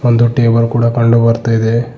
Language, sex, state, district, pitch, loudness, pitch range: Kannada, male, Karnataka, Bidar, 115 Hz, -12 LUFS, 115-120 Hz